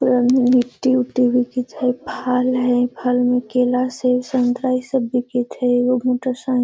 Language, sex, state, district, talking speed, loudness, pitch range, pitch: Magahi, female, Bihar, Gaya, 155 wpm, -19 LUFS, 245-255 Hz, 250 Hz